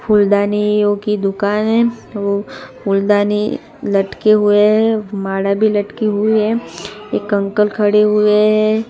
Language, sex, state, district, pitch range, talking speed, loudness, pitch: Hindi, female, Gujarat, Gandhinagar, 205-215 Hz, 120 wpm, -15 LUFS, 210 Hz